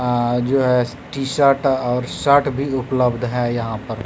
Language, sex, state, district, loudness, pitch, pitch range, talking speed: Hindi, male, Bihar, Katihar, -19 LUFS, 125 Hz, 120-135 Hz, 175 wpm